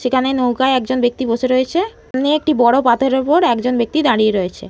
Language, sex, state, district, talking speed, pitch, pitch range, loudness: Bengali, female, West Bengal, Malda, 190 wpm, 255 Hz, 240-270 Hz, -16 LUFS